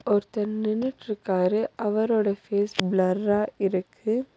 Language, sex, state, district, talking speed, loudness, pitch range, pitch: Tamil, female, Tamil Nadu, Nilgiris, 80 wpm, -25 LUFS, 195-220 Hz, 210 Hz